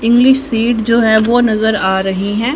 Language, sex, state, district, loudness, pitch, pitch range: Hindi, female, Haryana, Jhajjar, -12 LUFS, 225 Hz, 215-240 Hz